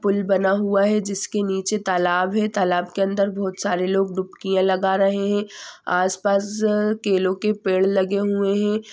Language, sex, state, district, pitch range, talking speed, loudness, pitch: Hindi, female, Chhattisgarh, Rajnandgaon, 190-205 Hz, 175 wpm, -21 LUFS, 195 Hz